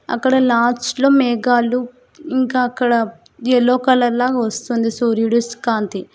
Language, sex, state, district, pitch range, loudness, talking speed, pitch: Telugu, female, Telangana, Hyderabad, 235-255 Hz, -17 LUFS, 105 wpm, 245 Hz